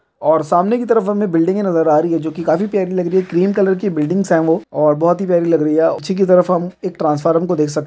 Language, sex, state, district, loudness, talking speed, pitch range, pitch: Hindi, male, Bihar, Darbhanga, -15 LUFS, 305 wpm, 160-190 Hz, 175 Hz